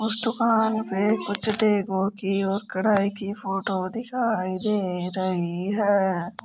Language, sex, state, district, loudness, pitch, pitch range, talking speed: Hindi, male, Rajasthan, Jaipur, -24 LUFS, 200 Hz, 190-220 Hz, 130 wpm